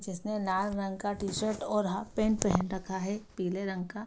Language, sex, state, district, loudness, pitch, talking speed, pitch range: Hindi, female, Bihar, Araria, -32 LUFS, 195 Hz, 205 wpm, 190-210 Hz